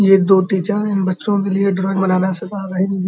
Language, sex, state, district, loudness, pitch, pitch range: Hindi, male, Uttar Pradesh, Muzaffarnagar, -17 LUFS, 195 Hz, 190-200 Hz